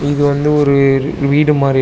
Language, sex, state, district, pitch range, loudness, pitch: Tamil, male, Tamil Nadu, Chennai, 140-145 Hz, -13 LUFS, 140 Hz